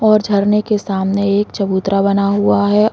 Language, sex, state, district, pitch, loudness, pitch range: Hindi, female, Uttarakhand, Uttarkashi, 200 Hz, -15 LUFS, 200-210 Hz